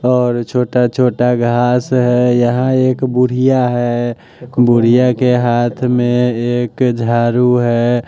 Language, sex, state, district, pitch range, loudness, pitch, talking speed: Hindi, male, Bihar, West Champaran, 120-125 Hz, -13 LUFS, 125 Hz, 110 wpm